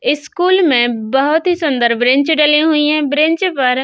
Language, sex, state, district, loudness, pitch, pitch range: Hindi, female, Uttar Pradesh, Budaun, -13 LUFS, 300 Hz, 260-320 Hz